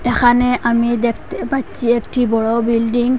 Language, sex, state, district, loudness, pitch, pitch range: Bengali, female, Assam, Hailakandi, -16 LUFS, 240 Hz, 235-245 Hz